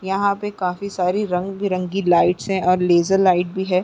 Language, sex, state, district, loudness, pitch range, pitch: Hindi, female, Chhattisgarh, Raigarh, -19 LUFS, 180-195 Hz, 185 Hz